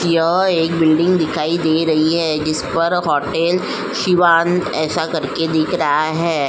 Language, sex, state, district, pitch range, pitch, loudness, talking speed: Hindi, female, Uttar Pradesh, Jyotiba Phule Nagar, 155-170 Hz, 165 Hz, -16 LUFS, 150 wpm